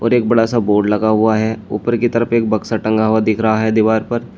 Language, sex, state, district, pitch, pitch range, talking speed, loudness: Hindi, male, Uttar Pradesh, Shamli, 110 Hz, 110-115 Hz, 275 wpm, -15 LUFS